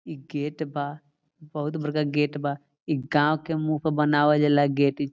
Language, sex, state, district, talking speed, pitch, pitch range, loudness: Bhojpuri, male, Bihar, Saran, 200 wpm, 150 Hz, 145-150 Hz, -25 LUFS